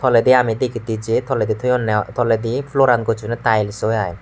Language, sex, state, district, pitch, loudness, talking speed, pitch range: Chakma, male, Tripura, West Tripura, 115 Hz, -18 LUFS, 185 wpm, 110-125 Hz